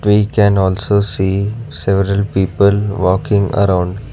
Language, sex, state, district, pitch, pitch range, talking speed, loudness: English, male, Karnataka, Bangalore, 100 Hz, 95-105 Hz, 115 wpm, -15 LUFS